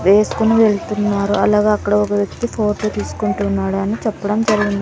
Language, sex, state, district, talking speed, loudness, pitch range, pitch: Telugu, female, Andhra Pradesh, Sri Satya Sai, 150 wpm, -17 LUFS, 200-215 Hz, 205 Hz